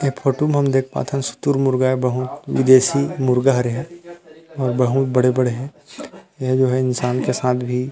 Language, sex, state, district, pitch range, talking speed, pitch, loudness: Chhattisgarhi, male, Chhattisgarh, Rajnandgaon, 125-140 Hz, 205 wpm, 130 Hz, -19 LUFS